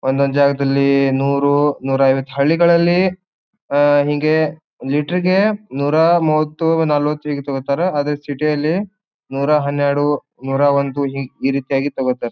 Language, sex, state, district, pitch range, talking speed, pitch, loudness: Kannada, male, Karnataka, Bijapur, 140-160 Hz, 115 wpm, 145 Hz, -17 LUFS